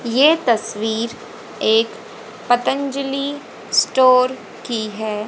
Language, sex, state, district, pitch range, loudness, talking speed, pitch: Hindi, female, Haryana, Jhajjar, 220-270 Hz, -18 LUFS, 80 wpm, 245 Hz